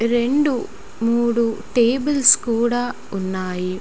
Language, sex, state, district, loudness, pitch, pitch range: Telugu, female, Telangana, Nalgonda, -19 LUFS, 235 Hz, 215-245 Hz